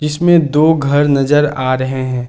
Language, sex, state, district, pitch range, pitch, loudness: Hindi, male, Jharkhand, Garhwa, 130-150 Hz, 145 Hz, -13 LUFS